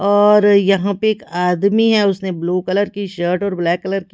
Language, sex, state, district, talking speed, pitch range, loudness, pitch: Hindi, female, Haryana, Charkhi Dadri, 215 wpm, 180-205 Hz, -16 LUFS, 200 Hz